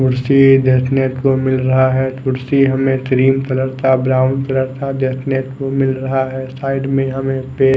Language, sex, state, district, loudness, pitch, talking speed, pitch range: Hindi, male, Odisha, Khordha, -15 LUFS, 130 Hz, 185 wpm, 130-135 Hz